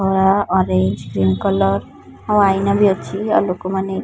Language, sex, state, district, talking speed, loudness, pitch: Odia, female, Odisha, Khordha, 150 wpm, -17 LUFS, 190 Hz